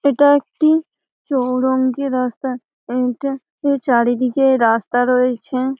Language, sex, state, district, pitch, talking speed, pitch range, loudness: Bengali, female, West Bengal, Malda, 260 Hz, 95 wpm, 250-280 Hz, -17 LUFS